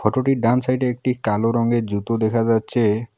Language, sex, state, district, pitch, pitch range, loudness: Bengali, male, West Bengal, Alipurduar, 115 Hz, 110-125 Hz, -20 LUFS